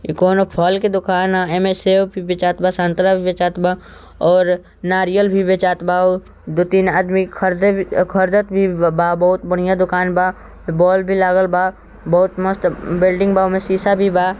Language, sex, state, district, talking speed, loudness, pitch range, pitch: Bhojpuri, male, Bihar, East Champaran, 185 wpm, -16 LUFS, 180-190 Hz, 185 Hz